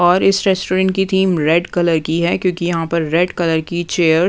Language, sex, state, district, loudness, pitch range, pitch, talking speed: Hindi, female, Punjab, Pathankot, -16 LUFS, 165-185 Hz, 175 Hz, 240 wpm